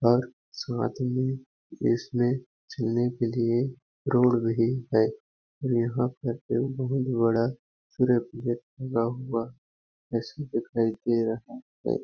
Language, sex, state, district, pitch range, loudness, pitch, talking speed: Hindi, male, Chhattisgarh, Balrampur, 115-130 Hz, -28 LUFS, 120 Hz, 100 wpm